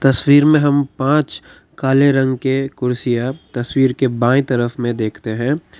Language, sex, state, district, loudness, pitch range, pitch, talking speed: Hindi, male, Karnataka, Bangalore, -16 LUFS, 120-140 Hz, 135 Hz, 155 wpm